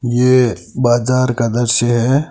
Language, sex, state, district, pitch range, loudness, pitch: Hindi, male, Rajasthan, Nagaur, 120-130 Hz, -14 LUFS, 120 Hz